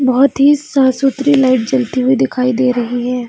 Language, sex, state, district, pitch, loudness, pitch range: Hindi, female, Bihar, Jamui, 260 Hz, -13 LUFS, 250-275 Hz